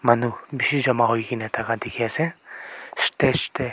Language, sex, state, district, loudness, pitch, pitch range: Nagamese, male, Nagaland, Kohima, -23 LUFS, 120 Hz, 115-135 Hz